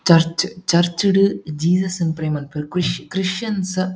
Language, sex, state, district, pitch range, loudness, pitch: Tulu, male, Karnataka, Dakshina Kannada, 165-185 Hz, -19 LUFS, 180 Hz